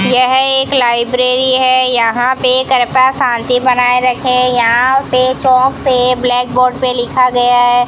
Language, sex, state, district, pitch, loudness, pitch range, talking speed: Hindi, female, Rajasthan, Bikaner, 255 Hz, -11 LUFS, 245-260 Hz, 150 wpm